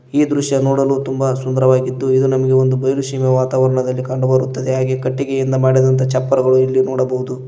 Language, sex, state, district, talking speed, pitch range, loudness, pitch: Kannada, male, Karnataka, Koppal, 150 wpm, 130-135 Hz, -16 LUFS, 130 Hz